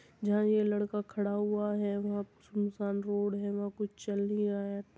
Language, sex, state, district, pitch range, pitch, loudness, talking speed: Hindi, female, Uttar Pradesh, Muzaffarnagar, 205-210 Hz, 205 Hz, -33 LUFS, 195 wpm